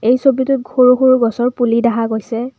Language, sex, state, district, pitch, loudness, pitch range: Assamese, female, Assam, Kamrup Metropolitan, 245 Hz, -14 LUFS, 235-255 Hz